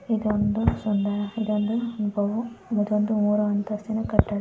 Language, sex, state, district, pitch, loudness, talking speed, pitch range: Kannada, female, Karnataka, Dharwad, 210 Hz, -25 LUFS, 80 wpm, 205-220 Hz